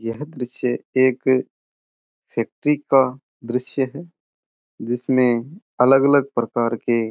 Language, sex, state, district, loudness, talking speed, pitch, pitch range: Rajasthani, male, Rajasthan, Churu, -20 LUFS, 110 wpm, 130 Hz, 120-135 Hz